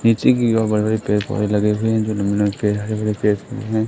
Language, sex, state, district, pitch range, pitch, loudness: Hindi, male, Madhya Pradesh, Katni, 105-110 Hz, 105 Hz, -19 LUFS